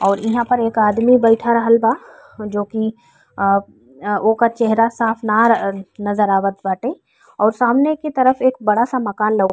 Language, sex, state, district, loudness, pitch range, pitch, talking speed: Bhojpuri, female, Uttar Pradesh, Ghazipur, -17 LUFS, 205-240 Hz, 225 Hz, 180 wpm